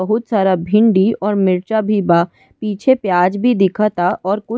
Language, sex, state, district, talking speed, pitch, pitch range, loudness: Bhojpuri, female, Uttar Pradesh, Ghazipur, 185 wpm, 200 Hz, 185-215 Hz, -15 LUFS